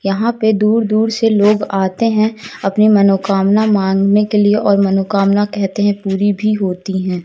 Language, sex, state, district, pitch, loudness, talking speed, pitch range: Hindi, female, Madhya Pradesh, Katni, 205 Hz, -14 LUFS, 175 wpm, 195-215 Hz